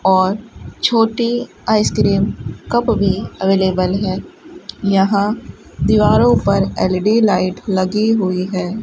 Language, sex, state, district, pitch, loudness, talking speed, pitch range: Hindi, female, Rajasthan, Bikaner, 200 Hz, -16 LUFS, 100 wpm, 190-225 Hz